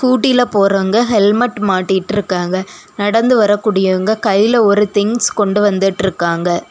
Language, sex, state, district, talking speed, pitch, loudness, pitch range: Tamil, female, Tamil Nadu, Kanyakumari, 105 wpm, 205 Hz, -14 LUFS, 190-220 Hz